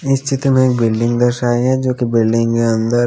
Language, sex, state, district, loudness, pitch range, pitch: Hindi, female, Haryana, Charkhi Dadri, -15 LUFS, 115-130 Hz, 120 Hz